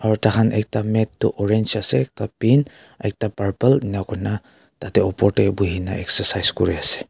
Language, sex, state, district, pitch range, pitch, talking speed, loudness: Nagamese, male, Nagaland, Kohima, 100-110 Hz, 105 Hz, 195 wpm, -19 LUFS